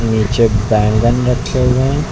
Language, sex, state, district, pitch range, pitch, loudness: Hindi, male, Uttar Pradesh, Lucknow, 110-125 Hz, 120 Hz, -14 LUFS